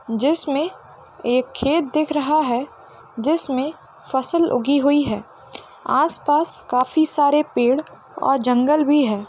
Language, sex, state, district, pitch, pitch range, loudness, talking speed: Hindi, female, Bihar, Purnia, 285 Hz, 255-305 Hz, -19 LUFS, 125 wpm